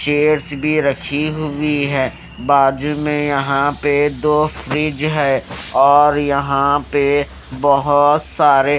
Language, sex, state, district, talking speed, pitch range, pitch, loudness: Hindi, male, Haryana, Rohtak, 115 wpm, 140-150 Hz, 145 Hz, -16 LUFS